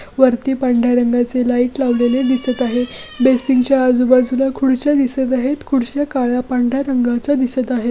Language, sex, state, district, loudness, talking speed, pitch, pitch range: Marathi, female, Maharashtra, Chandrapur, -16 LUFS, 145 wpm, 255 Hz, 245-265 Hz